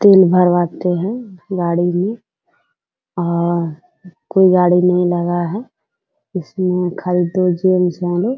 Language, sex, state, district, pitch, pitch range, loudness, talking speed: Hindi, female, Bihar, Purnia, 180 Hz, 175-185 Hz, -16 LUFS, 130 wpm